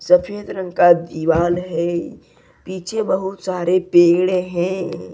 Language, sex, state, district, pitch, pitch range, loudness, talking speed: Hindi, male, Jharkhand, Deoghar, 180 Hz, 170-185 Hz, -18 LUFS, 115 wpm